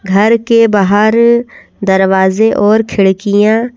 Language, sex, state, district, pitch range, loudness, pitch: Hindi, female, Madhya Pradesh, Bhopal, 195-225 Hz, -10 LUFS, 210 Hz